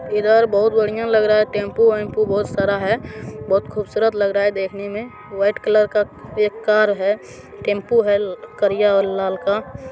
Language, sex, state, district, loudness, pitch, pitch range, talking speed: Hindi, male, Bihar, Supaul, -19 LUFS, 210 Hz, 200-215 Hz, 180 wpm